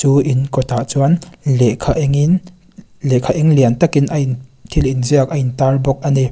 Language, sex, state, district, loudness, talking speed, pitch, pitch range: Mizo, female, Mizoram, Aizawl, -15 LUFS, 180 wpm, 140 Hz, 130-155 Hz